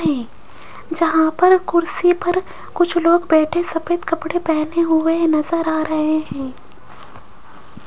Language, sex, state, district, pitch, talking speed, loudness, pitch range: Hindi, female, Rajasthan, Jaipur, 330 Hz, 120 wpm, -17 LUFS, 315-345 Hz